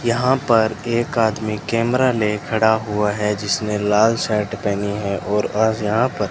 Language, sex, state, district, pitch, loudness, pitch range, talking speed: Hindi, male, Rajasthan, Bikaner, 110 Hz, -19 LUFS, 105-115 Hz, 180 wpm